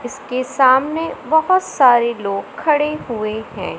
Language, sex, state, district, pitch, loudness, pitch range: Hindi, male, Madhya Pradesh, Katni, 255 Hz, -17 LUFS, 235-300 Hz